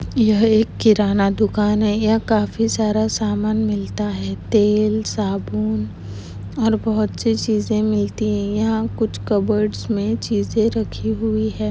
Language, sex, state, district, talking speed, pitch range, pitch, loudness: Hindi, female, Maharashtra, Chandrapur, 135 wpm, 195-220 Hz, 210 Hz, -19 LUFS